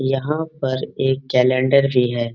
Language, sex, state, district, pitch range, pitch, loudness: Hindi, male, Bihar, Jamui, 125-135 Hz, 130 Hz, -19 LUFS